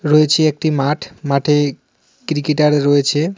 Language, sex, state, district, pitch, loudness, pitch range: Bengali, male, West Bengal, Cooch Behar, 150 Hz, -16 LUFS, 145-155 Hz